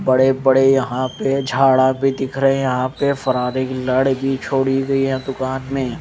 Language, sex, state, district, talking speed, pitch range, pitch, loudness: Hindi, male, Odisha, Malkangiri, 200 wpm, 130-135 Hz, 135 Hz, -18 LUFS